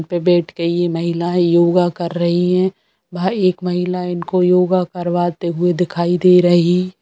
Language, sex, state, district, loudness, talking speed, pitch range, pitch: Bhojpuri, female, Bihar, Saran, -16 LUFS, 190 wpm, 175-180 Hz, 175 Hz